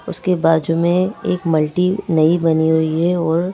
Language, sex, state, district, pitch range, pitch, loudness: Hindi, female, Madhya Pradesh, Bhopal, 160-180 Hz, 170 Hz, -17 LUFS